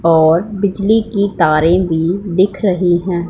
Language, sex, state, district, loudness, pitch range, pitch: Hindi, female, Punjab, Pathankot, -14 LUFS, 170-200 Hz, 180 Hz